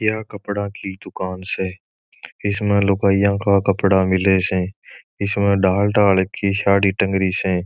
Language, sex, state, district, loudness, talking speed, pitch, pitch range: Marwari, male, Rajasthan, Churu, -19 LUFS, 140 wpm, 100 Hz, 95-100 Hz